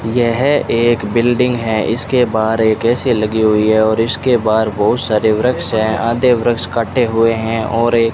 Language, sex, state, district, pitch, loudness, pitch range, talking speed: Hindi, male, Rajasthan, Bikaner, 115 Hz, -14 LUFS, 110-120 Hz, 190 wpm